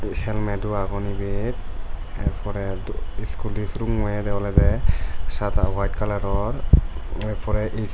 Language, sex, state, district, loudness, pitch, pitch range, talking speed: Chakma, male, Tripura, West Tripura, -25 LUFS, 100 Hz, 85-105 Hz, 100 wpm